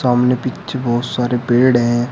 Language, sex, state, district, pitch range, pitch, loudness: Hindi, male, Uttar Pradesh, Shamli, 120-125 Hz, 125 Hz, -16 LUFS